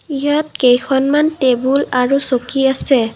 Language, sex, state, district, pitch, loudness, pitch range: Assamese, female, Assam, Kamrup Metropolitan, 270 Hz, -15 LUFS, 255-285 Hz